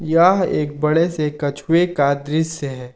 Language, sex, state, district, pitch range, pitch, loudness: Hindi, male, Jharkhand, Ranchi, 145-165 Hz, 155 Hz, -18 LUFS